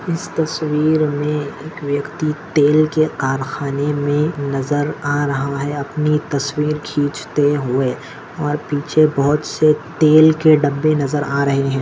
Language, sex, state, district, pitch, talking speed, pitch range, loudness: Hindi, male, Maharashtra, Dhule, 150 Hz, 140 wpm, 140-155 Hz, -17 LUFS